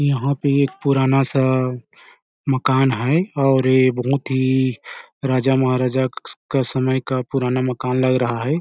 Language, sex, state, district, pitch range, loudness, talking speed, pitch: Hindi, male, Chhattisgarh, Balrampur, 130-135 Hz, -19 LUFS, 160 wpm, 130 Hz